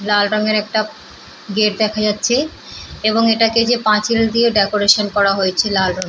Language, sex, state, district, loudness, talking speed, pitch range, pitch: Bengali, female, West Bengal, Purulia, -15 LUFS, 155 wpm, 205-225 Hz, 215 Hz